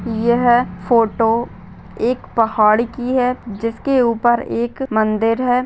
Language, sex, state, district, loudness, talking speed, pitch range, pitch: Hindi, female, Maharashtra, Aurangabad, -17 LUFS, 125 wpm, 225-245 Hz, 235 Hz